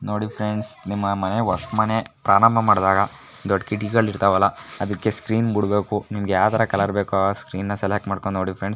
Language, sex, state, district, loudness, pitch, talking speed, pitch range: Kannada, female, Karnataka, Mysore, -21 LUFS, 105 Hz, 150 wpm, 100-110 Hz